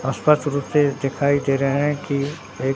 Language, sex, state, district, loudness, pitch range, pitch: Hindi, male, Bihar, Katihar, -21 LUFS, 135-145 Hz, 140 Hz